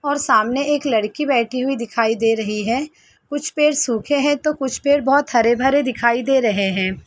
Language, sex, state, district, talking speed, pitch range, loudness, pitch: Hindi, female, Bihar, Sitamarhi, 205 wpm, 230-290 Hz, -18 LUFS, 265 Hz